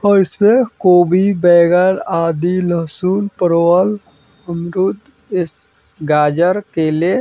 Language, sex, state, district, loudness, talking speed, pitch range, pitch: Hindi, male, Bihar, Vaishali, -14 LUFS, 100 wpm, 170-195 Hz, 180 Hz